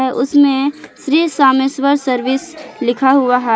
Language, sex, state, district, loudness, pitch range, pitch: Hindi, female, Jharkhand, Palamu, -14 LUFS, 255-285 Hz, 270 Hz